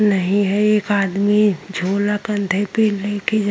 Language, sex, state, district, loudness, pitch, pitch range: Hindi, female, Uttar Pradesh, Jyotiba Phule Nagar, -18 LUFS, 205 Hz, 200-210 Hz